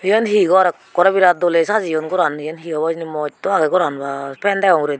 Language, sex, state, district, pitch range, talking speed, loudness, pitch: Chakma, female, Tripura, Unakoti, 150-190 Hz, 230 wpm, -17 LUFS, 165 Hz